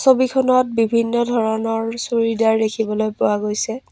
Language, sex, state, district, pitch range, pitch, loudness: Assamese, female, Assam, Kamrup Metropolitan, 220-240 Hz, 230 Hz, -19 LUFS